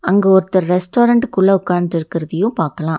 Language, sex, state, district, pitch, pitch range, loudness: Tamil, female, Tamil Nadu, Nilgiris, 185 Hz, 165-195 Hz, -15 LUFS